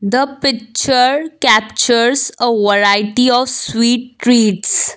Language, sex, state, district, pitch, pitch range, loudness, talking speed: English, female, Assam, Kamrup Metropolitan, 240 Hz, 215-255 Hz, -13 LUFS, 95 wpm